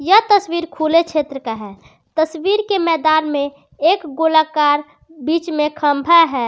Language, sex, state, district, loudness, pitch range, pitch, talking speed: Hindi, female, Jharkhand, Garhwa, -16 LUFS, 290-335 Hz, 315 Hz, 150 wpm